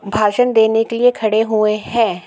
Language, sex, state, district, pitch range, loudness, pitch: Hindi, female, Uttar Pradesh, Etah, 215-230 Hz, -15 LUFS, 220 Hz